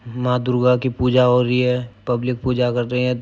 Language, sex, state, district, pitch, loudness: Hindi, male, Uttar Pradesh, Jyotiba Phule Nagar, 125 Hz, -19 LUFS